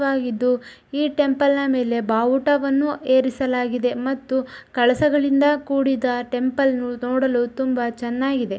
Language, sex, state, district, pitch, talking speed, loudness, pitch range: Kannada, female, Karnataka, Shimoga, 260 Hz, 100 wpm, -21 LUFS, 245-275 Hz